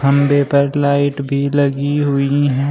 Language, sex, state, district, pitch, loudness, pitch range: Hindi, male, Uttar Pradesh, Shamli, 140 Hz, -15 LUFS, 140-145 Hz